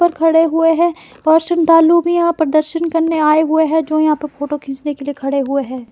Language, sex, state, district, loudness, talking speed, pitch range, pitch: Hindi, female, Himachal Pradesh, Shimla, -15 LUFS, 245 wpm, 290-330 Hz, 315 Hz